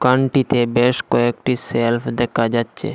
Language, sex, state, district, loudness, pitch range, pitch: Bengali, male, Assam, Hailakandi, -18 LUFS, 115-125 Hz, 120 Hz